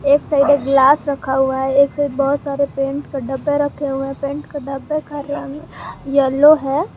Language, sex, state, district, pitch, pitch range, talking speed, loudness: Hindi, male, Jharkhand, Garhwa, 280 Hz, 275-290 Hz, 205 wpm, -17 LUFS